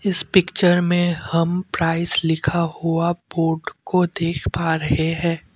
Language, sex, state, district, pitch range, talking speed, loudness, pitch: Hindi, male, Assam, Kamrup Metropolitan, 165-175 Hz, 140 wpm, -20 LUFS, 165 Hz